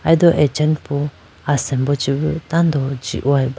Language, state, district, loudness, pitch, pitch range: Idu Mishmi, Arunachal Pradesh, Lower Dibang Valley, -18 LUFS, 145 Hz, 135-155 Hz